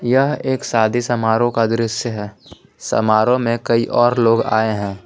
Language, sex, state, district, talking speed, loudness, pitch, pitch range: Hindi, male, Jharkhand, Palamu, 165 wpm, -17 LUFS, 115 Hz, 110-120 Hz